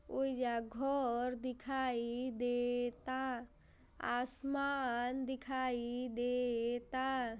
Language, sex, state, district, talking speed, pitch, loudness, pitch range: Bhojpuri, female, Uttar Pradesh, Gorakhpur, 75 wpm, 250 Hz, -38 LUFS, 245-260 Hz